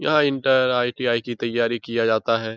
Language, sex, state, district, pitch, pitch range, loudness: Hindi, male, Bihar, Jahanabad, 120 Hz, 115-130 Hz, -21 LUFS